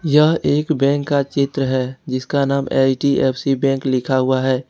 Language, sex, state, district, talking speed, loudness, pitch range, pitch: Hindi, male, Jharkhand, Ranchi, 165 wpm, -18 LUFS, 130-140 Hz, 135 Hz